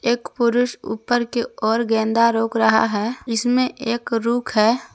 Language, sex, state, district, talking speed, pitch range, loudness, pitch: Hindi, female, Jharkhand, Garhwa, 155 wpm, 225-245 Hz, -20 LUFS, 230 Hz